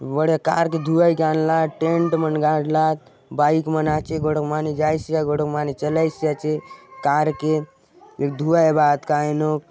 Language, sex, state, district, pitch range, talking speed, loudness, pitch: Halbi, male, Chhattisgarh, Bastar, 150-160 Hz, 180 wpm, -20 LUFS, 155 Hz